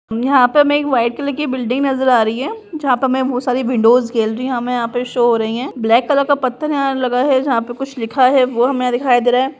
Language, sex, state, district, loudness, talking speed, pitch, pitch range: Hindi, female, Bihar, Purnia, -16 LUFS, 305 wpm, 255 Hz, 240-270 Hz